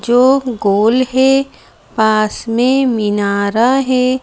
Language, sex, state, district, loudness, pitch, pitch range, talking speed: Hindi, female, Madhya Pradesh, Bhopal, -13 LUFS, 245 Hz, 215-260 Hz, 100 wpm